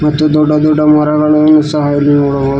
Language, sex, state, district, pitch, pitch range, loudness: Kannada, male, Karnataka, Koppal, 150 Hz, 145-150 Hz, -10 LUFS